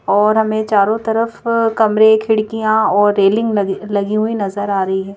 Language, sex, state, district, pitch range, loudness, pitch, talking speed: Hindi, female, Madhya Pradesh, Bhopal, 200-220 Hz, -15 LUFS, 215 Hz, 175 wpm